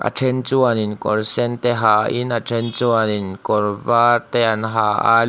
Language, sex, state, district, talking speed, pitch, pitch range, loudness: Mizo, male, Mizoram, Aizawl, 205 wpm, 115 Hz, 105-120 Hz, -18 LUFS